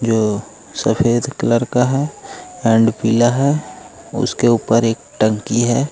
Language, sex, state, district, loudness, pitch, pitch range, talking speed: Hindi, male, Jharkhand, Ranchi, -17 LUFS, 120 Hz, 115-140 Hz, 130 wpm